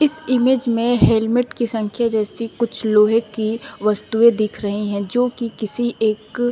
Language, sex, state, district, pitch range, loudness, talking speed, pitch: Hindi, female, Uttar Pradesh, Shamli, 215-240 Hz, -19 LUFS, 165 wpm, 230 Hz